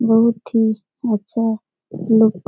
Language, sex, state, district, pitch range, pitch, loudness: Hindi, female, Bihar, Jahanabad, 215-230 Hz, 220 Hz, -19 LUFS